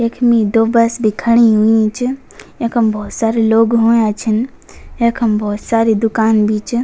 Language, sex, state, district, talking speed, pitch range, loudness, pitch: Garhwali, female, Uttarakhand, Tehri Garhwal, 165 wpm, 220-235 Hz, -14 LUFS, 225 Hz